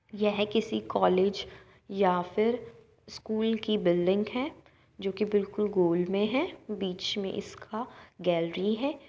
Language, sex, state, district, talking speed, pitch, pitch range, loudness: Hindi, female, Uttar Pradesh, Budaun, 140 wpm, 205 Hz, 185-220 Hz, -29 LUFS